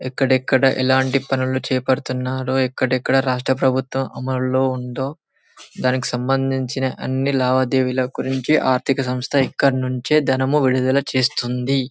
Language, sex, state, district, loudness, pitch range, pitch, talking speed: Telugu, male, Telangana, Karimnagar, -19 LUFS, 130-135 Hz, 130 Hz, 120 wpm